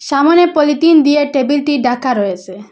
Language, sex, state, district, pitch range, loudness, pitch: Bengali, female, Assam, Hailakandi, 245-300 Hz, -12 LUFS, 285 Hz